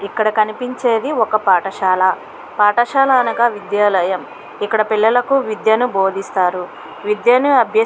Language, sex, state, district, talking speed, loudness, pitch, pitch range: Telugu, female, Andhra Pradesh, Krishna, 100 wpm, -16 LUFS, 215 Hz, 200-240 Hz